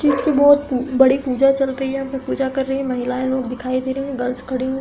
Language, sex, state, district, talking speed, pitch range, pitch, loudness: Hindi, female, Uttar Pradesh, Hamirpur, 310 wpm, 255-270 Hz, 265 Hz, -19 LUFS